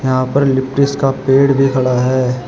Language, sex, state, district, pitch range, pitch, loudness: Hindi, male, Uttar Pradesh, Shamli, 130-135 Hz, 130 Hz, -14 LUFS